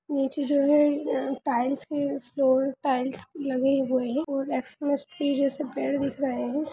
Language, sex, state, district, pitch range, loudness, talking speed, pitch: Hindi, female, Bihar, Jahanabad, 265-290 Hz, -26 LUFS, 170 wpm, 275 Hz